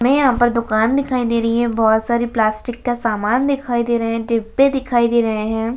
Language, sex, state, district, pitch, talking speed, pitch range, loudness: Hindi, female, Bihar, Jahanabad, 235 Hz, 230 wpm, 225-245 Hz, -17 LUFS